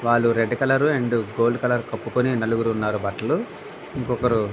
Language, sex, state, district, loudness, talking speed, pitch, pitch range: Telugu, male, Andhra Pradesh, Visakhapatnam, -22 LUFS, 160 wpm, 115 Hz, 115-125 Hz